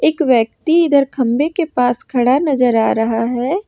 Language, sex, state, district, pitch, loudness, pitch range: Hindi, female, Jharkhand, Ranchi, 255 Hz, -15 LUFS, 245-305 Hz